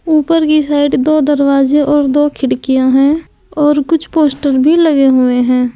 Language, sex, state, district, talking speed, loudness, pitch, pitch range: Hindi, female, Uttar Pradesh, Saharanpur, 165 wpm, -11 LUFS, 290 Hz, 265-305 Hz